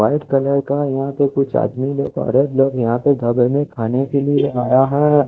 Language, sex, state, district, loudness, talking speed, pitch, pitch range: Hindi, male, Chandigarh, Chandigarh, -17 LUFS, 135 wpm, 135 Hz, 130-140 Hz